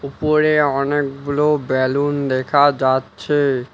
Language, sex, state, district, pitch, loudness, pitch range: Bengali, male, West Bengal, Alipurduar, 140 Hz, -17 LUFS, 130-145 Hz